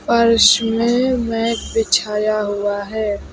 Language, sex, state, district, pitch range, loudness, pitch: Hindi, female, West Bengal, Alipurduar, 210-230 Hz, -17 LUFS, 225 Hz